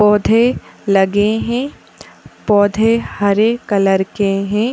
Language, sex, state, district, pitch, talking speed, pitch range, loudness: Hindi, female, Madhya Pradesh, Bhopal, 210 Hz, 100 wpm, 200-225 Hz, -15 LUFS